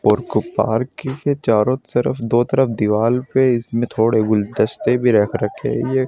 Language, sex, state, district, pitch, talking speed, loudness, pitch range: Hindi, male, Uttar Pradesh, Shamli, 120 Hz, 170 wpm, -18 LUFS, 110-130 Hz